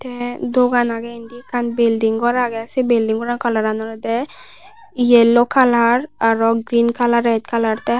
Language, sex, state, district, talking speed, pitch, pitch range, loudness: Chakma, female, Tripura, West Tripura, 160 wpm, 235 Hz, 230-245 Hz, -17 LUFS